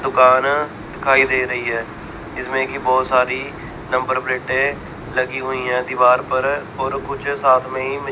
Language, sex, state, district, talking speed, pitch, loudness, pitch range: Hindi, male, Chandigarh, Chandigarh, 155 wpm, 130 Hz, -18 LUFS, 130-135 Hz